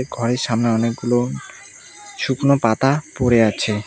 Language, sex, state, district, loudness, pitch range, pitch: Bengali, male, West Bengal, Cooch Behar, -19 LUFS, 115-135 Hz, 120 Hz